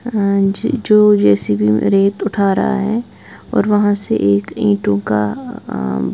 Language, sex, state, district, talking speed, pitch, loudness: Hindi, female, Bihar, West Champaran, 155 wpm, 195 Hz, -15 LUFS